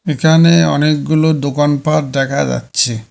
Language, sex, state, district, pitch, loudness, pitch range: Bengali, male, West Bengal, Cooch Behar, 150 Hz, -13 LUFS, 140-160 Hz